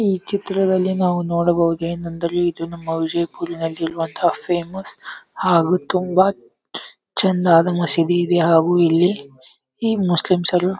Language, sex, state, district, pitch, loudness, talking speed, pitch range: Kannada, male, Karnataka, Bijapur, 175 Hz, -19 LUFS, 100 wpm, 170-185 Hz